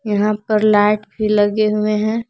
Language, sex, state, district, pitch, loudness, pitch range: Hindi, female, Jharkhand, Palamu, 215 Hz, -16 LUFS, 210-215 Hz